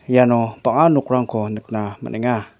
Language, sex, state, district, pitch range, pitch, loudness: Garo, male, Meghalaya, West Garo Hills, 110-125 Hz, 120 Hz, -19 LUFS